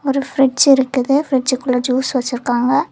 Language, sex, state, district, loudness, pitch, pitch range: Tamil, female, Tamil Nadu, Kanyakumari, -16 LUFS, 265 Hz, 255-275 Hz